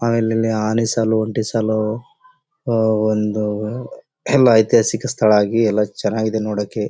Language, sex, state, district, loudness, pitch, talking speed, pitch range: Kannada, male, Karnataka, Bellary, -18 LUFS, 110 Hz, 150 wpm, 110-115 Hz